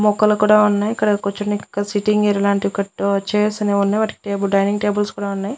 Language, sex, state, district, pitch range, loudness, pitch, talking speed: Telugu, female, Andhra Pradesh, Annamaya, 200-210 Hz, -18 LUFS, 205 Hz, 185 wpm